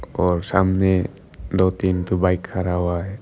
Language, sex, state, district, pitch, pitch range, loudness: Hindi, male, Arunachal Pradesh, Lower Dibang Valley, 90 Hz, 90-95 Hz, -21 LUFS